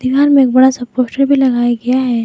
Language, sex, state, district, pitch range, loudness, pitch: Hindi, female, Jharkhand, Garhwa, 245-270 Hz, -12 LUFS, 255 Hz